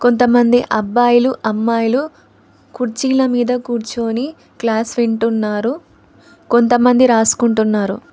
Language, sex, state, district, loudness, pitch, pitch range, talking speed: Telugu, female, Telangana, Hyderabad, -15 LUFS, 240 Hz, 225-245 Hz, 75 wpm